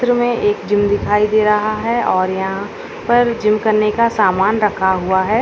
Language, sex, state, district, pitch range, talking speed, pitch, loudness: Hindi, female, Uttar Pradesh, Gorakhpur, 200-230 Hz, 210 wpm, 215 Hz, -15 LUFS